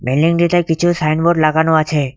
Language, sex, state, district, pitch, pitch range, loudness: Bengali, male, West Bengal, Cooch Behar, 160 Hz, 155-170 Hz, -14 LUFS